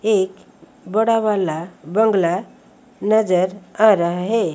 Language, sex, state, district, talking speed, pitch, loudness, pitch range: Hindi, female, Odisha, Malkangiri, 105 wpm, 195 Hz, -19 LUFS, 180-220 Hz